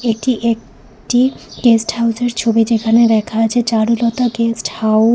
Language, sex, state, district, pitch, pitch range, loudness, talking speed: Bengali, female, Tripura, West Tripura, 230 Hz, 225-235 Hz, -15 LUFS, 140 wpm